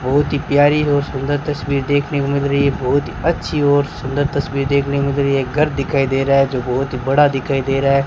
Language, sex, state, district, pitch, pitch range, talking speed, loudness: Hindi, male, Rajasthan, Bikaner, 140 Hz, 135-145 Hz, 260 wpm, -17 LUFS